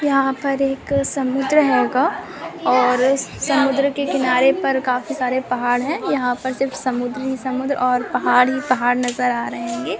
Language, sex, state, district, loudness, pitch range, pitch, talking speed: Hindi, female, Andhra Pradesh, Krishna, -19 LUFS, 250-275 Hz, 260 Hz, 160 wpm